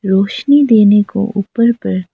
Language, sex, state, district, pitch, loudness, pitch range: Hindi, female, Arunachal Pradesh, Lower Dibang Valley, 210 Hz, -12 LUFS, 195-235 Hz